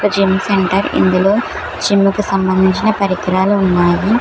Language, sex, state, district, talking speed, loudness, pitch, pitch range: Telugu, female, Telangana, Hyderabad, 115 wpm, -14 LUFS, 195 Hz, 185-200 Hz